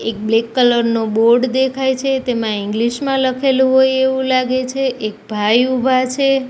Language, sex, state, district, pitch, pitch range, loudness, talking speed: Gujarati, female, Gujarat, Gandhinagar, 255 Hz, 230-265 Hz, -16 LUFS, 175 wpm